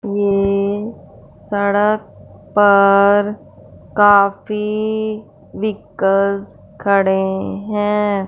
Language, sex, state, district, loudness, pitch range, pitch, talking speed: Hindi, female, Punjab, Fazilka, -16 LUFS, 200-210 Hz, 205 Hz, 50 wpm